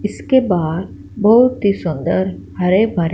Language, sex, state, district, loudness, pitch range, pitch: Hindi, female, Punjab, Fazilka, -16 LUFS, 155-210 Hz, 180 Hz